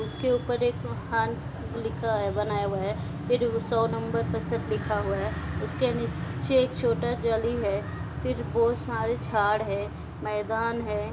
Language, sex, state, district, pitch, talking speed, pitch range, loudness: Hindi, female, Uttar Pradesh, Ghazipur, 210 Hz, 155 wpm, 145-230 Hz, -28 LUFS